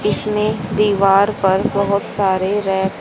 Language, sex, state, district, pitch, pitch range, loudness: Hindi, female, Haryana, Charkhi Dadri, 200 Hz, 195-210 Hz, -16 LUFS